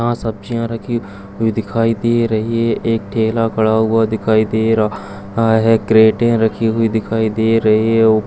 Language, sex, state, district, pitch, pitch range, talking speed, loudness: Kumaoni, male, Uttarakhand, Uttarkashi, 110 Hz, 110-115 Hz, 165 wpm, -15 LUFS